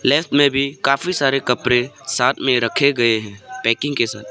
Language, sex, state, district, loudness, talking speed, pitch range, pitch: Hindi, male, Arunachal Pradesh, Papum Pare, -18 LUFS, 195 wpm, 115-140 Hz, 130 Hz